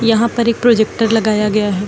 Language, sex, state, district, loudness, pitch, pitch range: Hindi, female, Uttar Pradesh, Lucknow, -14 LUFS, 225 Hz, 215-230 Hz